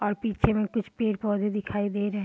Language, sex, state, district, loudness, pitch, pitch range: Hindi, female, Bihar, Muzaffarpur, -27 LUFS, 205 Hz, 205-215 Hz